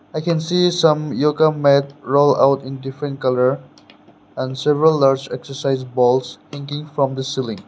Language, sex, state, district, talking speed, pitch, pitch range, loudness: English, male, Nagaland, Dimapur, 155 wpm, 140 Hz, 130-150 Hz, -18 LUFS